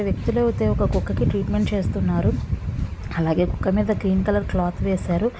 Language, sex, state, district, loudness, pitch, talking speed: Telugu, female, Andhra Pradesh, Visakhapatnam, -22 LUFS, 130 Hz, 145 wpm